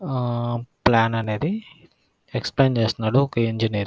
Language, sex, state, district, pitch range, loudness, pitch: Telugu, male, Andhra Pradesh, Krishna, 115-135 Hz, -22 LUFS, 120 Hz